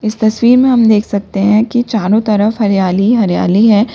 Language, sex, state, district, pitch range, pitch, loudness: Hindi, female, Uttar Pradesh, Lalitpur, 205-225 Hz, 215 Hz, -11 LUFS